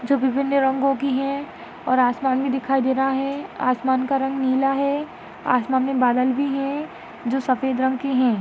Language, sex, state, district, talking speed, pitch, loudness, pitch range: Hindi, female, Maharashtra, Aurangabad, 195 wpm, 265 Hz, -22 LUFS, 260-275 Hz